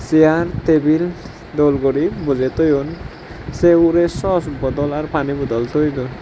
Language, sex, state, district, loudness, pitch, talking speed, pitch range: Chakma, male, Tripura, Dhalai, -17 LUFS, 150 Hz, 145 wpm, 140-165 Hz